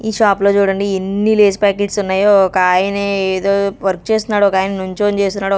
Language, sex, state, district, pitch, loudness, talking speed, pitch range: Telugu, female, Andhra Pradesh, Sri Satya Sai, 200 Hz, -14 LUFS, 185 wpm, 195-205 Hz